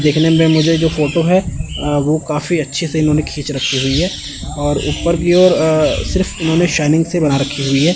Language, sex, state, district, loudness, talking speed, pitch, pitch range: Hindi, male, Chandigarh, Chandigarh, -15 LUFS, 210 wpm, 155 Hz, 145-165 Hz